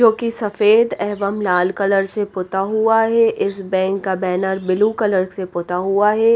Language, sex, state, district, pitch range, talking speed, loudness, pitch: Hindi, female, Haryana, Rohtak, 190-220 Hz, 190 wpm, -18 LUFS, 200 Hz